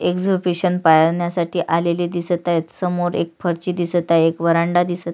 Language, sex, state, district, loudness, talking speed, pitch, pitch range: Marathi, female, Maharashtra, Sindhudurg, -19 LUFS, 150 wpm, 175 Hz, 170-175 Hz